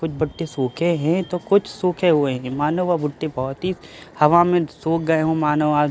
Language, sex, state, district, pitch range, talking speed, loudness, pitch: Hindi, male, Bihar, Katihar, 150-175 Hz, 235 wpm, -20 LUFS, 160 Hz